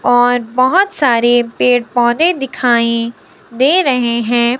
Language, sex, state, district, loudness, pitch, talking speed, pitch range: Hindi, male, Himachal Pradesh, Shimla, -13 LUFS, 245 Hz, 115 wpm, 235-270 Hz